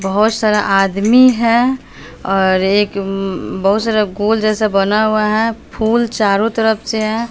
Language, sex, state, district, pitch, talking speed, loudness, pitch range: Hindi, female, Bihar, West Champaran, 215 Hz, 150 wpm, -14 LUFS, 195-225 Hz